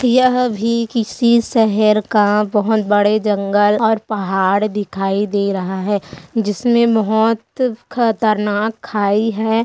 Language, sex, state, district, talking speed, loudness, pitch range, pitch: Hindi, female, Chhattisgarh, Kabirdham, 125 wpm, -16 LUFS, 205-230 Hz, 215 Hz